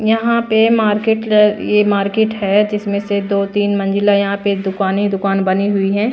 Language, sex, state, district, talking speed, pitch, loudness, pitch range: Hindi, female, Bihar, Patna, 175 wpm, 205 Hz, -15 LUFS, 200-215 Hz